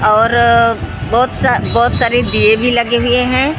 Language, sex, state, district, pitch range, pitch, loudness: Hindi, female, Maharashtra, Gondia, 230-245 Hz, 235 Hz, -12 LUFS